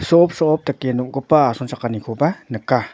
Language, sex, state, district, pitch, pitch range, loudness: Garo, male, Meghalaya, North Garo Hills, 135 Hz, 125-155 Hz, -19 LUFS